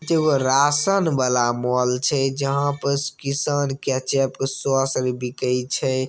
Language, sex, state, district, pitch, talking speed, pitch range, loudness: Maithili, male, Bihar, Begusarai, 135 Hz, 130 wpm, 130-140 Hz, -21 LUFS